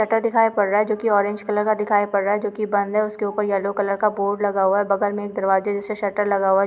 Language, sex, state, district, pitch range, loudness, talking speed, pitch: Hindi, female, Bihar, Lakhisarai, 200-210 Hz, -21 LUFS, 315 wpm, 205 Hz